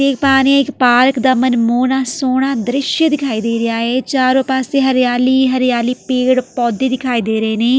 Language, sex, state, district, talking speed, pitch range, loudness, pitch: Punjabi, female, Delhi, New Delhi, 190 wpm, 245-265 Hz, -14 LUFS, 255 Hz